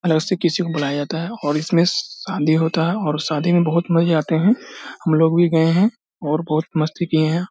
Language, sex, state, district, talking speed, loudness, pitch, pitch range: Hindi, male, Bihar, Samastipur, 225 wpm, -19 LUFS, 165 Hz, 155-175 Hz